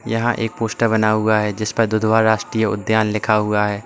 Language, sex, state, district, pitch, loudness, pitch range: Hindi, male, Uttar Pradesh, Lalitpur, 110 Hz, -18 LUFS, 105-115 Hz